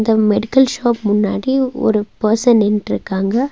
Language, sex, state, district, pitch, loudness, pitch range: Tamil, female, Tamil Nadu, Nilgiris, 220 Hz, -15 LUFS, 210-250 Hz